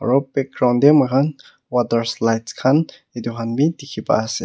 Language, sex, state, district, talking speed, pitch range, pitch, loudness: Nagamese, male, Nagaland, Kohima, 135 wpm, 115-140 Hz, 130 Hz, -19 LUFS